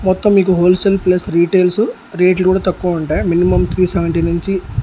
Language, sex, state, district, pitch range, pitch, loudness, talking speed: Telugu, male, Andhra Pradesh, Annamaya, 175-190 Hz, 185 Hz, -14 LUFS, 160 wpm